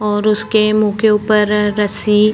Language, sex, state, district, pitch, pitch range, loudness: Hindi, female, Chhattisgarh, Korba, 210 Hz, 210-215 Hz, -14 LUFS